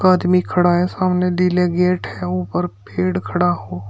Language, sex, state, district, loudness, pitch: Hindi, male, Uttar Pradesh, Shamli, -18 LUFS, 175 Hz